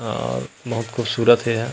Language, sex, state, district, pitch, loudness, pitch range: Chhattisgarhi, male, Chhattisgarh, Rajnandgaon, 115 Hz, -21 LUFS, 110-120 Hz